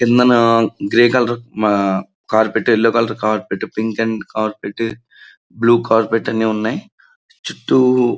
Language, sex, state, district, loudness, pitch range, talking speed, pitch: Telugu, male, Andhra Pradesh, Srikakulam, -16 LUFS, 110-120 Hz, 115 wpm, 115 Hz